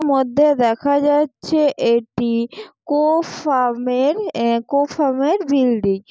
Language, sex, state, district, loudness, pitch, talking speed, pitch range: Bengali, female, West Bengal, Jalpaiguri, -18 LUFS, 280 Hz, 110 wpm, 240-295 Hz